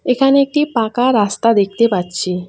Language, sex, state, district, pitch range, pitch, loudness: Bengali, female, West Bengal, Cooch Behar, 195-255 Hz, 230 Hz, -15 LUFS